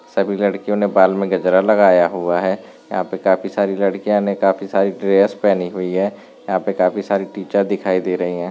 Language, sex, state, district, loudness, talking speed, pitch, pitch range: Hindi, male, Bihar, Darbhanga, -17 LUFS, 210 wpm, 95 Hz, 95-100 Hz